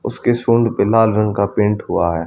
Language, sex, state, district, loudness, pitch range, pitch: Hindi, male, Haryana, Charkhi Dadri, -16 LUFS, 100-115 Hz, 105 Hz